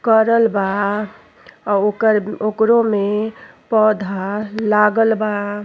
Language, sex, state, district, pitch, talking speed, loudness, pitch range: Bhojpuri, female, Uttar Pradesh, Ghazipur, 215 Hz, 95 wpm, -17 LUFS, 205-220 Hz